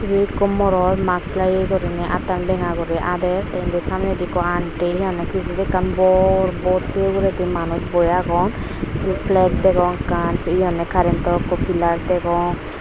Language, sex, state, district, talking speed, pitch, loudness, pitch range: Chakma, female, Tripura, Unakoti, 165 wpm, 180 Hz, -19 LUFS, 175-190 Hz